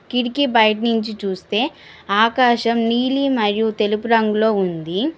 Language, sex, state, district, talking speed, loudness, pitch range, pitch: Telugu, female, Telangana, Mahabubabad, 105 wpm, -18 LUFS, 210-245 Hz, 225 Hz